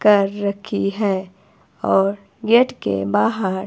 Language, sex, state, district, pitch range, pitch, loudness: Hindi, female, Himachal Pradesh, Shimla, 190-205 Hz, 200 Hz, -19 LUFS